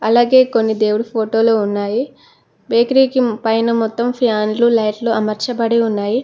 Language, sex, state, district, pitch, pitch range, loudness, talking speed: Telugu, female, Telangana, Mahabubabad, 230 Hz, 220-240 Hz, -15 LUFS, 125 wpm